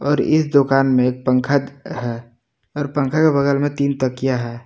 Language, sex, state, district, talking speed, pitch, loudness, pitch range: Hindi, male, Jharkhand, Palamu, 180 wpm, 135 Hz, -18 LUFS, 125-145 Hz